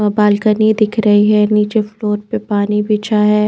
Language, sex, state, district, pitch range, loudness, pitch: Hindi, female, Chandigarh, Chandigarh, 210-215 Hz, -14 LUFS, 210 Hz